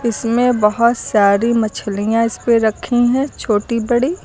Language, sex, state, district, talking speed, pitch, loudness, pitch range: Hindi, female, Uttar Pradesh, Lucknow, 140 wpm, 230 Hz, -16 LUFS, 215-240 Hz